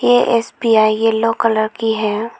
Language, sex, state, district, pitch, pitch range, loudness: Hindi, female, Arunachal Pradesh, Lower Dibang Valley, 225 Hz, 215-230 Hz, -15 LUFS